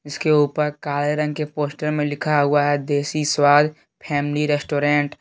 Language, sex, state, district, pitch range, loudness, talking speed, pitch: Hindi, male, Jharkhand, Deoghar, 145-150 Hz, -20 LUFS, 170 wpm, 145 Hz